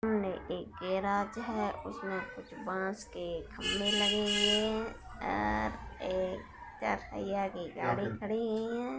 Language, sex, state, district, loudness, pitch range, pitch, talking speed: Hindi, female, Bihar, Darbhanga, -34 LUFS, 190-220 Hz, 205 Hz, 140 wpm